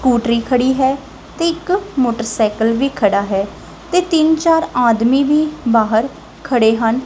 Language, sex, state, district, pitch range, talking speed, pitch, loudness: Punjabi, female, Punjab, Kapurthala, 225-305 Hz, 145 wpm, 250 Hz, -15 LUFS